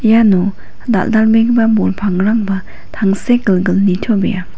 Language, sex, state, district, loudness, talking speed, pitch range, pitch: Garo, female, Meghalaya, West Garo Hills, -13 LUFS, 80 wpm, 195-225 Hz, 205 Hz